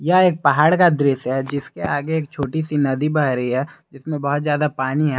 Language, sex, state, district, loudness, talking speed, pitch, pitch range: Hindi, male, Jharkhand, Garhwa, -19 LUFS, 230 wpm, 145 Hz, 135-155 Hz